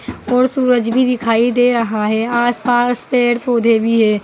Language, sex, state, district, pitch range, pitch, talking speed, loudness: Hindi, female, Uttar Pradesh, Saharanpur, 230-245 Hz, 240 Hz, 170 wpm, -15 LUFS